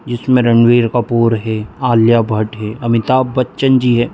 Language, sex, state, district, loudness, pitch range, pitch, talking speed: Hindi, male, Bihar, Muzaffarpur, -13 LUFS, 115-125 Hz, 120 Hz, 160 wpm